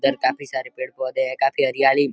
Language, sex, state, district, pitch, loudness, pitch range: Hindi, male, Uttar Pradesh, Deoria, 135 Hz, -22 LUFS, 130-135 Hz